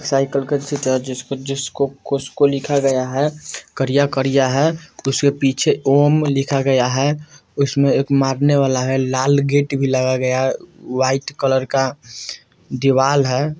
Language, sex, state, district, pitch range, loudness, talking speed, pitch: Bajjika, male, Bihar, Vaishali, 130-140 Hz, -18 LUFS, 145 wpm, 135 Hz